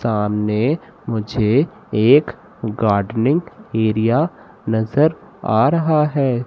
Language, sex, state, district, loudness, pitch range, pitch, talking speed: Hindi, male, Madhya Pradesh, Katni, -18 LUFS, 110-150 Hz, 115 Hz, 85 wpm